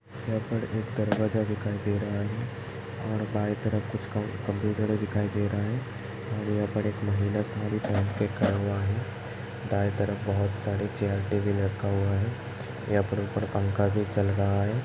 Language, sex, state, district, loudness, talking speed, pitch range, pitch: Hindi, male, Uttar Pradesh, Hamirpur, -29 LUFS, 185 wpm, 100-110 Hz, 105 Hz